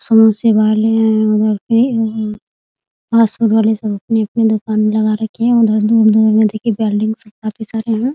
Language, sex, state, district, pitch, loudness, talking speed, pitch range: Hindi, female, Bihar, Muzaffarpur, 220 Hz, -14 LUFS, 140 wpm, 215-225 Hz